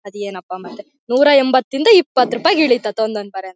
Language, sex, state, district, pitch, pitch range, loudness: Kannada, female, Karnataka, Bellary, 240 Hz, 200-280 Hz, -14 LUFS